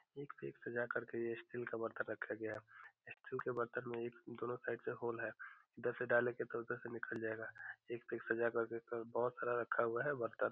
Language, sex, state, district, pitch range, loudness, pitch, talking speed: Hindi, male, Bihar, Gopalganj, 115-120 Hz, -43 LUFS, 115 Hz, 215 wpm